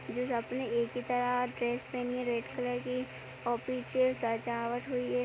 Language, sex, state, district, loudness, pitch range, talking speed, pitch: Hindi, female, Uttar Pradesh, Jyotiba Phule Nagar, -34 LUFS, 235-250 Hz, 195 wpm, 245 Hz